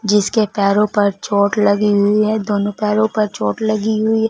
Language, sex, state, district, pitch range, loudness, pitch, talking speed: Hindi, female, Punjab, Fazilka, 205-215 Hz, -16 LUFS, 210 Hz, 180 wpm